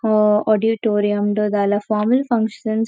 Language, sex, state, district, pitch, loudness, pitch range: Tulu, female, Karnataka, Dakshina Kannada, 215 Hz, -18 LUFS, 210-220 Hz